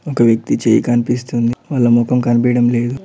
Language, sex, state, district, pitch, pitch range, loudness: Telugu, male, Telangana, Mahabubabad, 120 Hz, 120-125 Hz, -15 LUFS